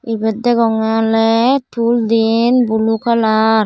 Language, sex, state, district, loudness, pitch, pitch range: Chakma, female, Tripura, Dhalai, -14 LUFS, 225 Hz, 220-235 Hz